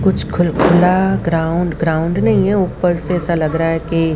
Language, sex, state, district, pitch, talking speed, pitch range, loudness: Hindi, female, Haryana, Rohtak, 175 Hz, 200 wpm, 165-185 Hz, -15 LUFS